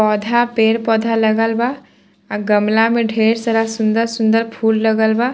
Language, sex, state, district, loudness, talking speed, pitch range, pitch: Bhojpuri, female, Bihar, Saran, -16 LUFS, 180 wpm, 220-230 Hz, 225 Hz